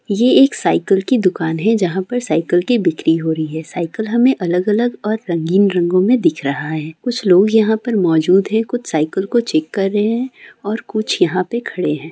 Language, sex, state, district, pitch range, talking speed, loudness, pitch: Hindi, female, Bihar, Saran, 165-225 Hz, 215 wpm, -16 LUFS, 195 Hz